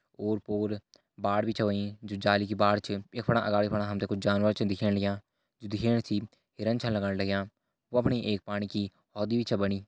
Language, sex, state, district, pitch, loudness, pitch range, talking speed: Hindi, male, Uttarakhand, Uttarkashi, 105 Hz, -30 LUFS, 100-110 Hz, 230 wpm